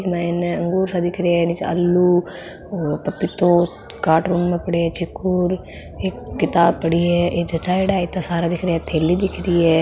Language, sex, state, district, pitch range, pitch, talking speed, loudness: Marwari, female, Rajasthan, Nagaur, 170-180 Hz, 175 Hz, 190 wpm, -19 LUFS